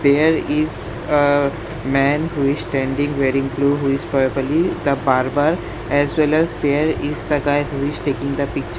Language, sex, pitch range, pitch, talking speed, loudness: English, male, 135-150 Hz, 140 Hz, 185 wpm, -19 LUFS